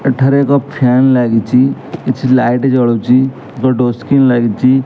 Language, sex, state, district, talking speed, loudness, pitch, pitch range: Odia, male, Odisha, Malkangiri, 175 wpm, -12 LUFS, 130 Hz, 125-135 Hz